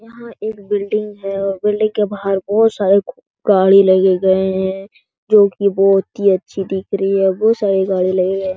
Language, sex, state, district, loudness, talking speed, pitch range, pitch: Hindi, male, Bihar, Jahanabad, -15 LUFS, 190 wpm, 190-210 Hz, 195 Hz